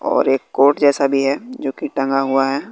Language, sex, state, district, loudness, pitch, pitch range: Hindi, male, Bihar, West Champaran, -17 LUFS, 135 Hz, 135-140 Hz